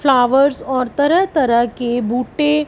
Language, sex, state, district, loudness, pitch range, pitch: Hindi, female, Punjab, Fazilka, -16 LUFS, 245-295 Hz, 265 Hz